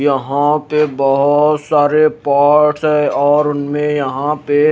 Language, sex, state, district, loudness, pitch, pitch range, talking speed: Hindi, male, Himachal Pradesh, Shimla, -14 LUFS, 145 Hz, 145-150 Hz, 140 wpm